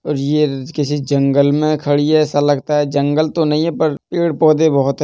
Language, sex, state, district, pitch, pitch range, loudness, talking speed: Hindi, male, Uttar Pradesh, Jalaun, 150 Hz, 145-155 Hz, -15 LUFS, 240 wpm